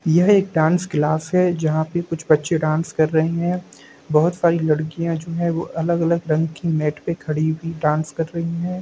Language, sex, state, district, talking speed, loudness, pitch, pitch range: Hindi, male, Bihar, Sitamarhi, 205 wpm, -20 LUFS, 165 Hz, 155-170 Hz